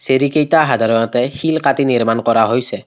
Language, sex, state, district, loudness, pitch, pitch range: Assamese, male, Assam, Kamrup Metropolitan, -14 LUFS, 130 Hz, 115-140 Hz